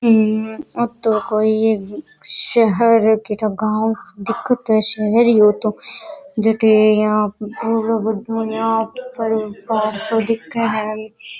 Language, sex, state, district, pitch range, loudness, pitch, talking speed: Rajasthani, female, Rajasthan, Nagaur, 215-230 Hz, -17 LUFS, 220 Hz, 105 wpm